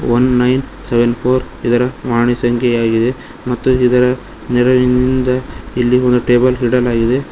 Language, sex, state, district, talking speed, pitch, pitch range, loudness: Kannada, male, Karnataka, Koppal, 115 wpm, 125 Hz, 120-125 Hz, -14 LUFS